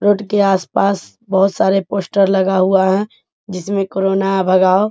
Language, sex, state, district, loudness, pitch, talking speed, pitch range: Hindi, female, Bihar, Bhagalpur, -15 LUFS, 195 Hz, 160 wpm, 190-200 Hz